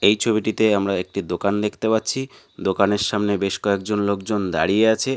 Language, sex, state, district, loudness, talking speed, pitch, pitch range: Bengali, male, West Bengal, North 24 Parganas, -21 LUFS, 160 wpm, 105 Hz, 100-110 Hz